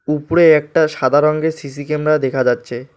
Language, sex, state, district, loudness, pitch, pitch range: Bengali, male, West Bengal, Alipurduar, -15 LUFS, 150 Hz, 135-155 Hz